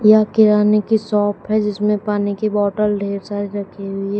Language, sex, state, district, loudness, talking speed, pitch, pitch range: Hindi, female, Uttar Pradesh, Shamli, -17 LUFS, 200 wpm, 210 Hz, 205-210 Hz